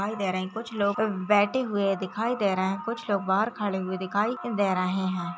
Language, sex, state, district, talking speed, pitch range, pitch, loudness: Hindi, female, Chhattisgarh, Raigarh, 235 wpm, 190-220 Hz, 200 Hz, -27 LUFS